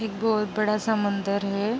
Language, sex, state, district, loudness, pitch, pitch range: Hindi, female, Uttar Pradesh, Jalaun, -25 LUFS, 210 Hz, 200-220 Hz